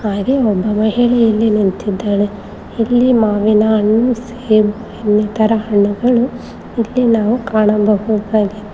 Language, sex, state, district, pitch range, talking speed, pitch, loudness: Kannada, female, Karnataka, Koppal, 210-230 Hz, 95 wpm, 215 Hz, -14 LUFS